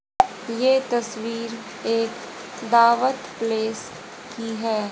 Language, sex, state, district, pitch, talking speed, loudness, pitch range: Hindi, female, Haryana, Charkhi Dadri, 230 Hz, 85 wpm, -23 LUFS, 225-240 Hz